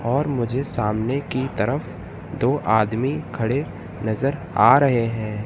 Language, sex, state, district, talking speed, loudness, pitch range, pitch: Hindi, male, Madhya Pradesh, Katni, 130 wpm, -21 LUFS, 110-135 Hz, 120 Hz